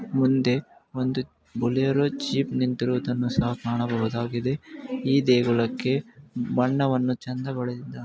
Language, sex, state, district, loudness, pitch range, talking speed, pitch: Kannada, male, Karnataka, Mysore, -25 LUFS, 120-135 Hz, 75 wpm, 125 Hz